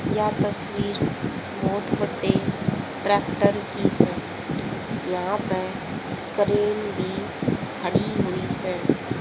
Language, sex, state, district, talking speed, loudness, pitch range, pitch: Hindi, female, Haryana, Charkhi Dadri, 90 wpm, -25 LUFS, 185-210 Hz, 205 Hz